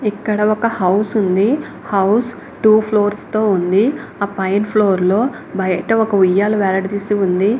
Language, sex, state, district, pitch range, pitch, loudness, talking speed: Telugu, female, Karnataka, Raichur, 195-215 Hz, 205 Hz, -16 LUFS, 150 wpm